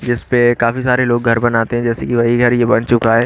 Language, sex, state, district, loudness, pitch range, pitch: Hindi, male, Haryana, Rohtak, -14 LUFS, 115-120 Hz, 120 Hz